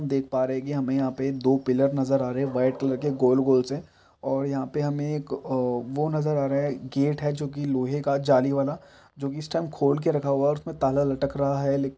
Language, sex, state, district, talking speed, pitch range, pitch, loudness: Hindi, male, Chhattisgarh, Balrampur, 280 wpm, 135-145 Hz, 140 Hz, -25 LUFS